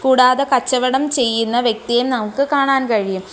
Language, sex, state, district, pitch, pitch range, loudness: Malayalam, female, Kerala, Kollam, 255 Hz, 230-265 Hz, -16 LUFS